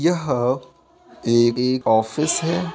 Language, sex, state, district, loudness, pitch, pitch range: Hindi, male, Bihar, Bhagalpur, -20 LUFS, 130 Hz, 120-165 Hz